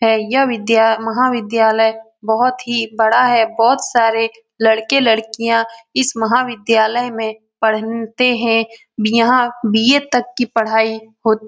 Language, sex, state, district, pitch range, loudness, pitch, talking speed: Hindi, female, Bihar, Lakhisarai, 220-245 Hz, -15 LUFS, 225 Hz, 125 wpm